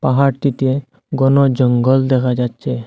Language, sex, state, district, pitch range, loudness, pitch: Bengali, male, Assam, Hailakandi, 125-135 Hz, -15 LUFS, 130 Hz